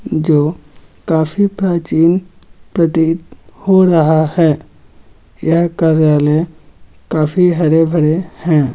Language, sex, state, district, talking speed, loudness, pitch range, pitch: Magahi, male, Bihar, Gaya, 95 wpm, -14 LUFS, 155-175 Hz, 165 Hz